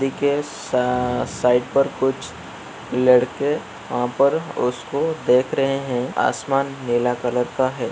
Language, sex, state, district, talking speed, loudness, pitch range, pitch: Hindi, male, Uttar Pradesh, Etah, 130 wpm, -21 LUFS, 125-135 Hz, 125 Hz